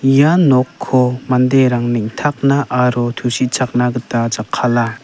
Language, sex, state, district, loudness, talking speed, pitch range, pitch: Garo, male, Meghalaya, West Garo Hills, -15 LUFS, 95 wpm, 120-135 Hz, 125 Hz